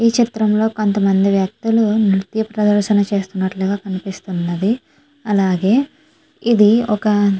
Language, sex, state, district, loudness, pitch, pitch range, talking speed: Telugu, female, Andhra Pradesh, Chittoor, -17 LUFS, 210 Hz, 195-225 Hz, 90 wpm